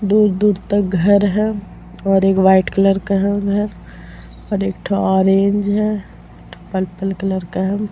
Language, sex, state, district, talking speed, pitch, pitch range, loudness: Hindi, female, Bihar, Vaishali, 175 wpm, 195 Hz, 190-205 Hz, -17 LUFS